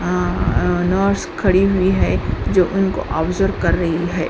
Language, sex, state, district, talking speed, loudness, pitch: Hindi, female, Uttar Pradesh, Hamirpur, 155 wpm, -18 LUFS, 175 Hz